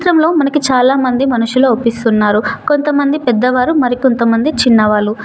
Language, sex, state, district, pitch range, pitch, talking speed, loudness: Telugu, female, Telangana, Mahabubabad, 230-285 Hz, 255 Hz, 105 wpm, -12 LUFS